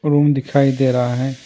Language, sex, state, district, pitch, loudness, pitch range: Hindi, male, Karnataka, Bangalore, 135 Hz, -17 LUFS, 130-145 Hz